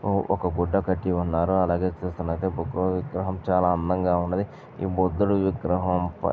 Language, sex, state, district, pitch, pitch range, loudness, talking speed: Telugu, male, Andhra Pradesh, Chittoor, 90 Hz, 90-95 Hz, -25 LUFS, 160 wpm